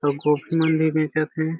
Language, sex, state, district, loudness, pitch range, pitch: Chhattisgarhi, male, Chhattisgarh, Jashpur, -22 LUFS, 150-160 Hz, 155 Hz